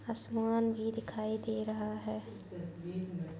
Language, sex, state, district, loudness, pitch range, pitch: Hindi, female, Bihar, Darbhanga, -37 LUFS, 175-225 Hz, 215 Hz